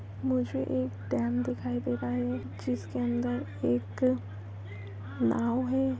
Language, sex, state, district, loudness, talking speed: Hindi, female, Andhra Pradesh, Visakhapatnam, -31 LUFS, 120 wpm